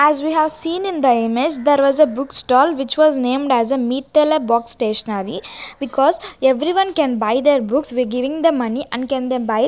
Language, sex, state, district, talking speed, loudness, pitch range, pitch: English, female, Chandigarh, Chandigarh, 210 wpm, -17 LUFS, 245-305 Hz, 270 Hz